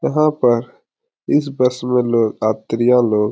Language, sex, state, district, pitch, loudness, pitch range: Hindi, male, Bihar, Supaul, 125 Hz, -17 LUFS, 115-135 Hz